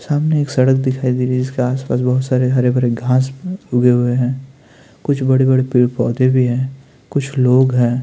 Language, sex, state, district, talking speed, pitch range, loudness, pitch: Hindi, male, Uttarakhand, Tehri Garhwal, 210 wpm, 125-135 Hz, -16 LUFS, 130 Hz